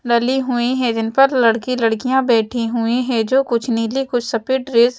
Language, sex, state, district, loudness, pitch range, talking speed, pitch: Hindi, female, Chhattisgarh, Raipur, -17 LUFS, 230-255 Hz, 205 wpm, 240 Hz